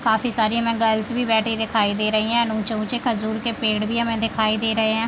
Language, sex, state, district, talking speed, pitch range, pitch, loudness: Hindi, female, Uttar Pradesh, Deoria, 250 wpm, 220-230 Hz, 225 Hz, -21 LUFS